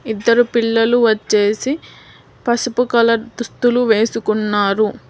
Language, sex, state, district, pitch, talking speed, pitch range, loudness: Telugu, female, Telangana, Hyderabad, 230 Hz, 80 wpm, 215-240 Hz, -16 LUFS